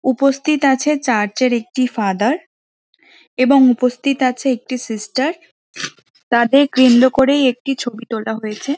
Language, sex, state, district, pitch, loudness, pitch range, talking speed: Bengali, female, West Bengal, Jhargram, 255 Hz, -16 LUFS, 240-275 Hz, 125 wpm